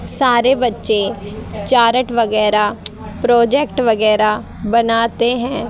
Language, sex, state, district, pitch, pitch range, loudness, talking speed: Hindi, female, Haryana, Charkhi Dadri, 230 Hz, 215-245 Hz, -15 LUFS, 85 wpm